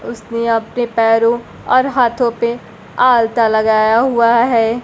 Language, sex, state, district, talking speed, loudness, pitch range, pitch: Hindi, female, Bihar, Kaimur, 125 wpm, -14 LUFS, 225-240 Hz, 235 Hz